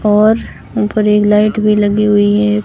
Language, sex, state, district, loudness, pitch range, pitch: Hindi, female, Rajasthan, Barmer, -12 LUFS, 210-215 Hz, 210 Hz